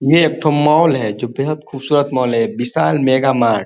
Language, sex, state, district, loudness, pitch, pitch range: Hindi, male, Uttar Pradesh, Ghazipur, -15 LUFS, 135 Hz, 120-150 Hz